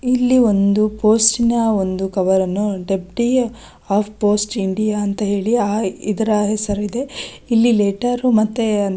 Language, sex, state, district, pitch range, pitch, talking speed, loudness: Kannada, female, Karnataka, Belgaum, 200-235 Hz, 210 Hz, 120 wpm, -17 LUFS